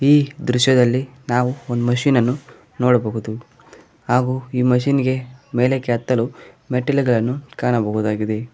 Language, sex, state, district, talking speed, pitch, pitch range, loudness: Kannada, male, Karnataka, Koppal, 100 wpm, 125 Hz, 120-130 Hz, -19 LUFS